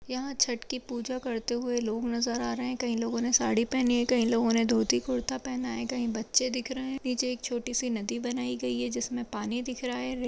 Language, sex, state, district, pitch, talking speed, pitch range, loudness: Hindi, female, Uttar Pradesh, Budaun, 245 Hz, 245 wpm, 230-255 Hz, -30 LUFS